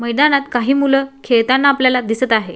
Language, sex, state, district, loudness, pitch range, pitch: Marathi, female, Maharashtra, Sindhudurg, -15 LUFS, 235-275 Hz, 255 Hz